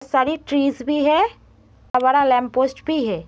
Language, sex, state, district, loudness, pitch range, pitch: Hindi, female, Uttar Pradesh, Gorakhpur, -19 LUFS, 255-295 Hz, 270 Hz